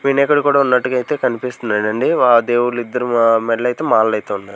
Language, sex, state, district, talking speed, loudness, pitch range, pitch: Telugu, male, Andhra Pradesh, Sri Satya Sai, 160 wpm, -16 LUFS, 115-125 Hz, 120 Hz